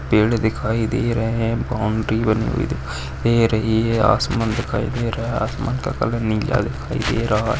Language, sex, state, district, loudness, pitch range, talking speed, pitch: Hindi, male, Maharashtra, Dhule, -20 LUFS, 110-115 Hz, 195 wpm, 115 Hz